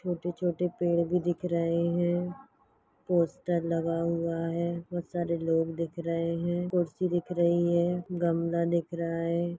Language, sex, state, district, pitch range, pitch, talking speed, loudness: Hindi, female, Maharashtra, Pune, 170-175 Hz, 170 Hz, 165 wpm, -29 LUFS